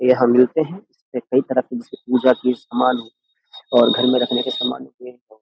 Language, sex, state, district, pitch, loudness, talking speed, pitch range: Hindi, male, Uttar Pradesh, Jyotiba Phule Nagar, 125 Hz, -18 LUFS, 220 wpm, 120-130 Hz